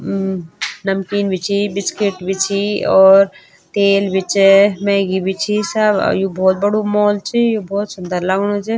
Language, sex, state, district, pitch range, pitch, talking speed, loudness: Garhwali, female, Uttarakhand, Tehri Garhwal, 190-205 Hz, 200 Hz, 180 wpm, -15 LUFS